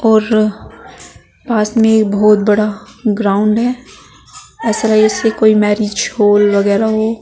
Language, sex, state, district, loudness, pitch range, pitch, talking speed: Hindi, female, Uttar Pradesh, Saharanpur, -13 LUFS, 210-220 Hz, 215 Hz, 125 wpm